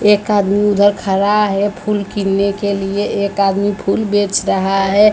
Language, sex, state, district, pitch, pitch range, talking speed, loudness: Hindi, female, Bihar, Patna, 200 Hz, 195-205 Hz, 175 wpm, -15 LUFS